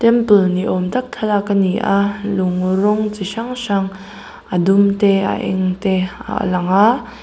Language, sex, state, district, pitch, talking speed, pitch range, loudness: Mizo, female, Mizoram, Aizawl, 200 Hz, 180 wpm, 190-215 Hz, -17 LUFS